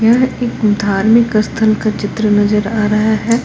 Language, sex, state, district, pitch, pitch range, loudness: Hindi, female, Jharkhand, Palamu, 215 Hz, 210-225 Hz, -13 LUFS